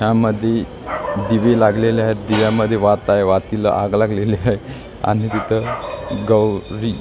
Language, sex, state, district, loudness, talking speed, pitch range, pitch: Marathi, male, Maharashtra, Gondia, -17 LUFS, 120 wpm, 105-110 Hz, 110 Hz